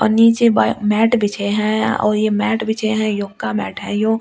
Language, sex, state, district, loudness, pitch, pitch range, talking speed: Hindi, female, Delhi, New Delhi, -17 LUFS, 215 Hz, 205-220 Hz, 230 wpm